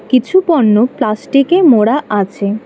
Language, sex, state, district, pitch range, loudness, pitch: Bengali, female, West Bengal, Alipurduar, 215-290 Hz, -12 LUFS, 250 Hz